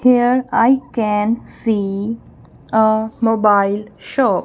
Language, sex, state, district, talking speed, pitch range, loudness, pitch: English, female, Punjab, Kapurthala, 95 wpm, 210-235 Hz, -17 LUFS, 220 Hz